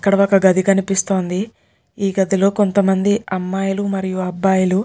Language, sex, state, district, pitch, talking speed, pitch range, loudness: Telugu, female, Telangana, Nalgonda, 195 Hz, 110 wpm, 190-200 Hz, -17 LUFS